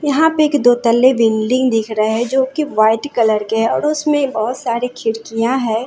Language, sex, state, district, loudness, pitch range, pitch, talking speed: Hindi, female, Bihar, Katihar, -15 LUFS, 225-275 Hz, 245 Hz, 215 wpm